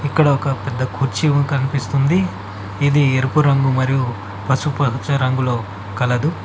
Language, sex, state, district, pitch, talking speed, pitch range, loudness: Telugu, male, Telangana, Mahabubabad, 135 Hz, 120 wpm, 125-145 Hz, -18 LUFS